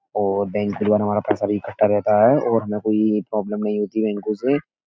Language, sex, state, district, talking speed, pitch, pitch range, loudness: Hindi, male, Uttar Pradesh, Etah, 235 wpm, 105 Hz, 105-110 Hz, -20 LUFS